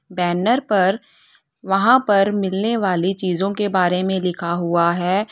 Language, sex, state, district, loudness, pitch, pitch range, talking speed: Hindi, female, Uttar Pradesh, Lalitpur, -18 LUFS, 190 Hz, 180-205 Hz, 145 wpm